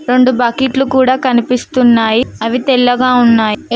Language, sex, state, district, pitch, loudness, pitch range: Telugu, female, Telangana, Mahabubabad, 250 Hz, -11 LUFS, 235-260 Hz